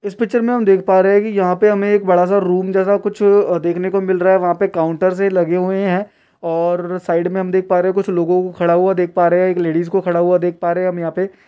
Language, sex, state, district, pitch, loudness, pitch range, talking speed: Hindi, male, Uttar Pradesh, Deoria, 185 Hz, -15 LUFS, 175-195 Hz, 320 wpm